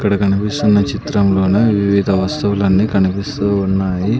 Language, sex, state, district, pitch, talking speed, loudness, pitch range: Telugu, male, Andhra Pradesh, Sri Satya Sai, 100 Hz, 100 wpm, -15 LUFS, 95-100 Hz